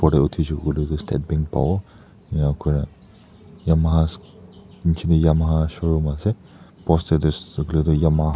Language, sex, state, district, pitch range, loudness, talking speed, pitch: Nagamese, male, Nagaland, Dimapur, 75-85 Hz, -21 LUFS, 115 wpm, 80 Hz